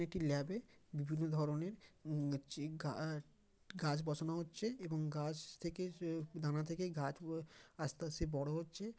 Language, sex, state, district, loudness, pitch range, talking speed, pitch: Bengali, male, West Bengal, Kolkata, -43 LUFS, 150-170 Hz, 135 wpm, 160 Hz